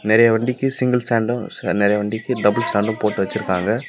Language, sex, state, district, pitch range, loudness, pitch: Tamil, male, Tamil Nadu, Namakkal, 105-120 Hz, -19 LUFS, 110 Hz